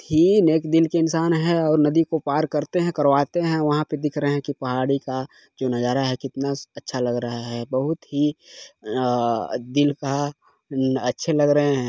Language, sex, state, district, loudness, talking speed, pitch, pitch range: Hindi, male, Chhattisgarh, Balrampur, -22 LUFS, 205 wpm, 145 Hz, 130-160 Hz